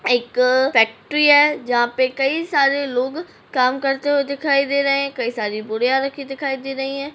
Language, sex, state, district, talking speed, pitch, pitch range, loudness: Hindi, female, Uttarakhand, Tehri Garhwal, 195 wpm, 270 Hz, 250-280 Hz, -18 LUFS